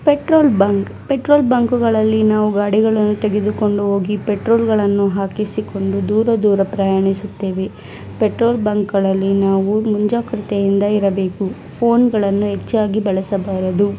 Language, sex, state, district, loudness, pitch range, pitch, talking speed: Kannada, male, Karnataka, Mysore, -16 LUFS, 195-220 Hz, 205 Hz, 105 wpm